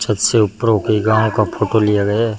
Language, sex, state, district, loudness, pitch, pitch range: Hindi, male, Jharkhand, Sahebganj, -15 LUFS, 110 Hz, 105-110 Hz